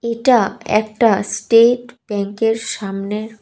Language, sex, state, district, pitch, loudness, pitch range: Bengali, female, Tripura, West Tripura, 225 Hz, -17 LUFS, 205-235 Hz